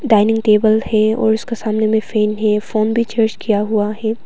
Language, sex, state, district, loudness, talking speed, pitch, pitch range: Hindi, female, Arunachal Pradesh, Papum Pare, -16 LUFS, 210 wpm, 220 Hz, 215-225 Hz